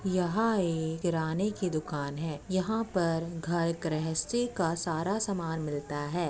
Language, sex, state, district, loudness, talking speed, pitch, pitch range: Hindi, female, Uttar Pradesh, Etah, -31 LUFS, 135 wpm, 170 Hz, 160-190 Hz